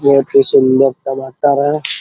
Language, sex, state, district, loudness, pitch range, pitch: Hindi, male, Bihar, Araria, -13 LUFS, 135-145 Hz, 140 Hz